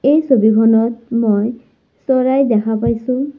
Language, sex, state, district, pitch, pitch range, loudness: Assamese, female, Assam, Sonitpur, 235 Hz, 225-260 Hz, -15 LUFS